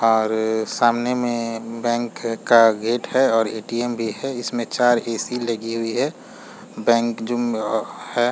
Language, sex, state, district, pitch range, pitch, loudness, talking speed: Hindi, male, Jharkhand, Jamtara, 115-120 Hz, 115 Hz, -21 LUFS, 145 wpm